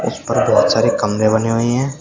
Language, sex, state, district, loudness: Hindi, male, Uttar Pradesh, Shamli, -15 LUFS